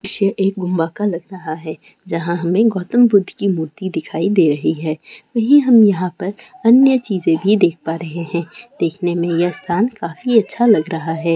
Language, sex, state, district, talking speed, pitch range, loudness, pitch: Hindi, female, Bihar, Kishanganj, 195 wpm, 165-210 Hz, -17 LUFS, 185 Hz